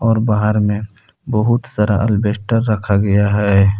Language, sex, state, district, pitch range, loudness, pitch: Hindi, male, Jharkhand, Palamu, 105-110 Hz, -16 LUFS, 105 Hz